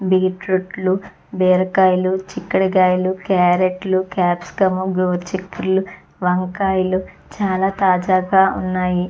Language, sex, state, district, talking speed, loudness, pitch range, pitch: Telugu, female, Andhra Pradesh, Chittoor, 80 wpm, -18 LUFS, 185-190 Hz, 185 Hz